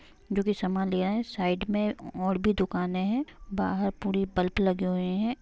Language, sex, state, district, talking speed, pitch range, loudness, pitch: Hindi, female, Bihar, Sitamarhi, 200 wpm, 185-210 Hz, -29 LUFS, 195 Hz